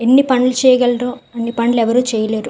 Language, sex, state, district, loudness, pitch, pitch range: Telugu, female, Andhra Pradesh, Visakhapatnam, -15 LUFS, 245 Hz, 230-250 Hz